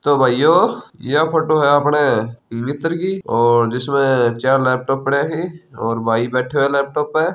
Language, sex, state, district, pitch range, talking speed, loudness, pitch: Hindi, male, Rajasthan, Churu, 120-150 Hz, 140 wpm, -17 LUFS, 140 Hz